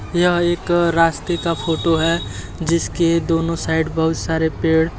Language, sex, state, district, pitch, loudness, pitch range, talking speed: Hindi, male, Uttar Pradesh, Etah, 165 Hz, -18 LUFS, 160-170 Hz, 155 wpm